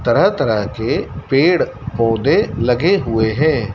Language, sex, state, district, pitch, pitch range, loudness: Hindi, male, Madhya Pradesh, Dhar, 115 Hz, 110-135 Hz, -16 LUFS